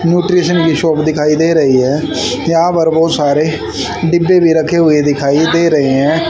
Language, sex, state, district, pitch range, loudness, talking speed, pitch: Hindi, male, Haryana, Rohtak, 150-170 Hz, -12 LUFS, 180 wpm, 160 Hz